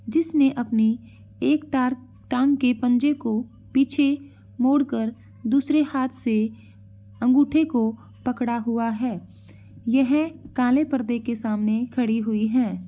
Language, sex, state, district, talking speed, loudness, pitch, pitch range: Hindi, female, Uttar Pradesh, Ghazipur, 125 wpm, -23 LUFS, 245 Hz, 220-270 Hz